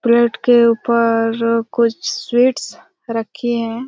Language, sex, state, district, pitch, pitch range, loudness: Hindi, female, Chhattisgarh, Raigarh, 235 Hz, 230-250 Hz, -16 LUFS